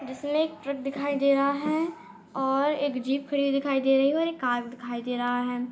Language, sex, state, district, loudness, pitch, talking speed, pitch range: Hindi, female, Jharkhand, Sahebganj, -27 LUFS, 275 Hz, 230 wpm, 250-285 Hz